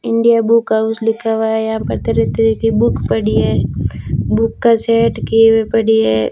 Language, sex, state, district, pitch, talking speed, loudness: Hindi, female, Rajasthan, Bikaner, 220 Hz, 200 wpm, -14 LUFS